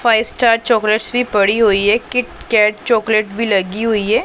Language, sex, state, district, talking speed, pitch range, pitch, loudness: Hindi, female, Punjab, Pathankot, 200 wpm, 210-230 Hz, 220 Hz, -14 LUFS